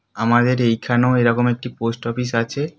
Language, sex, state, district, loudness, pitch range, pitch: Bengali, male, West Bengal, Kolkata, -19 LUFS, 115-125 Hz, 120 Hz